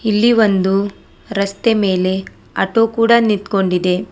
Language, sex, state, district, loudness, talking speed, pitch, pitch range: Kannada, female, Karnataka, Bangalore, -15 LUFS, 100 wpm, 200 Hz, 190-225 Hz